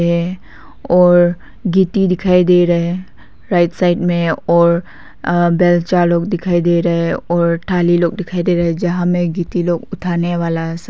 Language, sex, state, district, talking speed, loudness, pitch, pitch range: Hindi, female, Arunachal Pradesh, Papum Pare, 165 wpm, -15 LUFS, 175 Hz, 170-180 Hz